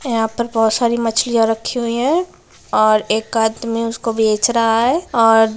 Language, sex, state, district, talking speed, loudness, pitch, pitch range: Hindi, female, Bihar, Gopalganj, 185 wpm, -16 LUFS, 230 Hz, 225-235 Hz